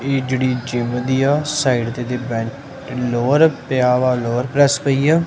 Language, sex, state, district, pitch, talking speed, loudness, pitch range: Punjabi, male, Punjab, Kapurthala, 130 Hz, 160 wpm, -18 LUFS, 125-140 Hz